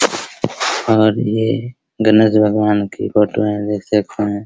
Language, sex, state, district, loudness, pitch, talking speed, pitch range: Hindi, male, Bihar, Araria, -16 LUFS, 105 Hz, 135 wpm, 105-110 Hz